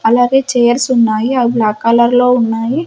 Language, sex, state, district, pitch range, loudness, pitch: Telugu, female, Andhra Pradesh, Sri Satya Sai, 230-250 Hz, -12 LUFS, 240 Hz